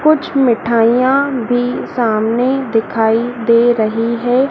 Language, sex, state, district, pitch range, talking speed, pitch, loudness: Hindi, female, Madhya Pradesh, Dhar, 230-260 Hz, 105 wpm, 240 Hz, -14 LUFS